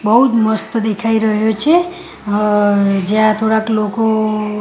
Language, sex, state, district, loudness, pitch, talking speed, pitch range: Gujarati, female, Gujarat, Gandhinagar, -14 LUFS, 220 Hz, 115 wpm, 210-225 Hz